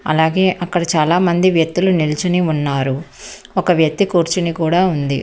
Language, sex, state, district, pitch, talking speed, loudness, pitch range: Telugu, female, Telangana, Hyderabad, 170 Hz, 135 wpm, -16 LUFS, 155-180 Hz